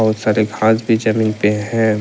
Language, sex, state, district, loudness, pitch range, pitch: Hindi, male, Jharkhand, Deoghar, -16 LUFS, 105-110 Hz, 110 Hz